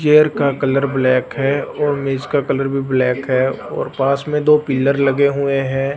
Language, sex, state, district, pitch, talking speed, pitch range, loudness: Hindi, male, Punjab, Fazilka, 135 Hz, 200 wpm, 135-145 Hz, -17 LUFS